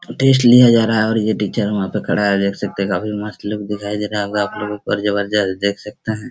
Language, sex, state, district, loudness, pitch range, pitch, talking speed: Hindi, male, Bihar, Araria, -17 LUFS, 100-110 Hz, 105 Hz, 305 wpm